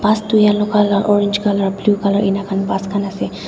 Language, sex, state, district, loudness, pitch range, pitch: Nagamese, female, Nagaland, Dimapur, -16 LUFS, 195-210 Hz, 200 Hz